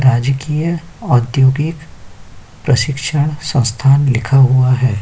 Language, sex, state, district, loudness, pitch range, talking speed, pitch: Hindi, male, Uttar Pradesh, Jyotiba Phule Nagar, -14 LUFS, 125-145 Hz, 85 wpm, 135 Hz